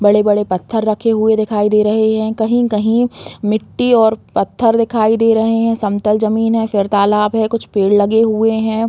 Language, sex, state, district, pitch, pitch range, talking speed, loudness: Hindi, female, Chhattisgarh, Bastar, 220 Hz, 210-225 Hz, 180 wpm, -14 LUFS